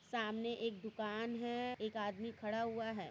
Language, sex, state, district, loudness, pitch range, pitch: Hindi, female, Uttar Pradesh, Varanasi, -42 LUFS, 215-230 Hz, 225 Hz